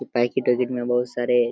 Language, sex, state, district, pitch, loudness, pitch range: Hindi, male, Uttar Pradesh, Deoria, 125 Hz, -23 LUFS, 120-125 Hz